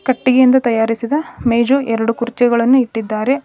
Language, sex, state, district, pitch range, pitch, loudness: Kannada, female, Karnataka, Dharwad, 230-260 Hz, 240 Hz, -15 LUFS